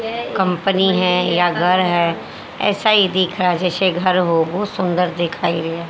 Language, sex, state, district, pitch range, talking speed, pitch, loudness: Hindi, female, Haryana, Jhajjar, 175-190 Hz, 160 wpm, 180 Hz, -17 LUFS